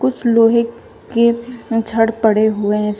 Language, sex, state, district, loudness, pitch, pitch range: Hindi, female, Uttar Pradesh, Shamli, -16 LUFS, 230 Hz, 220-235 Hz